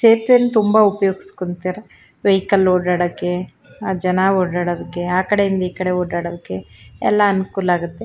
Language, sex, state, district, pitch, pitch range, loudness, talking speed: Kannada, female, Karnataka, Shimoga, 185 Hz, 175-200 Hz, -18 LUFS, 105 wpm